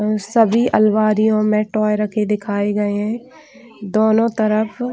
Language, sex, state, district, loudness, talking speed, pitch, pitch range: Hindi, female, Chhattisgarh, Bilaspur, -17 LUFS, 135 wpm, 215 Hz, 210-225 Hz